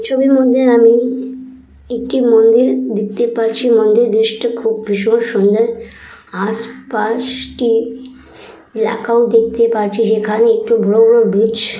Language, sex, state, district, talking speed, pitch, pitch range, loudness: Bengali, female, West Bengal, Purulia, 115 wpm, 230 Hz, 220-240 Hz, -13 LUFS